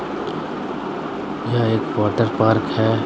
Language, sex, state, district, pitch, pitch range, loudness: Hindi, male, Bihar, West Champaran, 110 Hz, 105-115 Hz, -21 LUFS